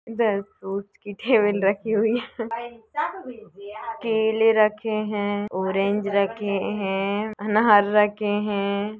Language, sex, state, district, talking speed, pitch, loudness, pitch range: Hindi, female, Uttar Pradesh, Deoria, 105 wpm, 210 Hz, -23 LUFS, 200-220 Hz